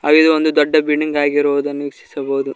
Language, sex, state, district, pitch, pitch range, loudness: Kannada, male, Karnataka, Koppal, 145 Hz, 145-155 Hz, -15 LUFS